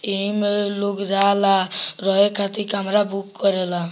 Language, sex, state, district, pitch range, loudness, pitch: Bhojpuri, male, Bihar, Muzaffarpur, 195-205 Hz, -20 LUFS, 200 Hz